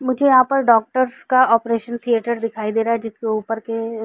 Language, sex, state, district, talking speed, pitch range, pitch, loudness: Hindi, female, Uttar Pradesh, Varanasi, 220 wpm, 225-255 Hz, 230 Hz, -18 LUFS